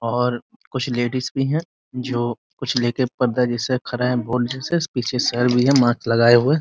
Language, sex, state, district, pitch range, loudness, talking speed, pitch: Hindi, male, Bihar, Muzaffarpur, 120-130 Hz, -20 LUFS, 210 wpm, 125 Hz